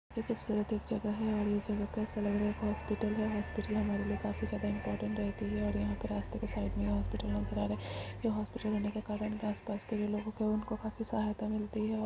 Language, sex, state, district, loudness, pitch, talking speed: Hindi, female, Bihar, Purnia, -36 LUFS, 210 Hz, 255 wpm